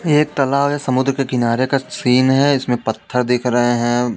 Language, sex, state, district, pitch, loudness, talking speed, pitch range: Hindi, male, Madhya Pradesh, Katni, 130 Hz, -17 LUFS, 200 wpm, 125-140 Hz